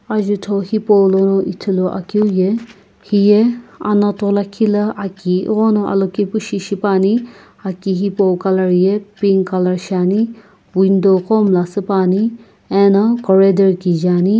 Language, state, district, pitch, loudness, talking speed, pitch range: Sumi, Nagaland, Kohima, 200 Hz, -15 LUFS, 110 wpm, 190-210 Hz